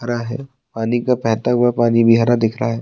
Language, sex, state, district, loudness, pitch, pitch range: Hindi, male, Uttarakhand, Tehri Garhwal, -17 LUFS, 120 Hz, 115-120 Hz